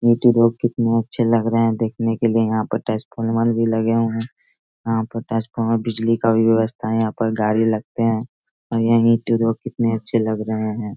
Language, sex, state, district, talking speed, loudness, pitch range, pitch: Hindi, male, Bihar, Sitamarhi, 195 wpm, -19 LUFS, 110-115 Hz, 115 Hz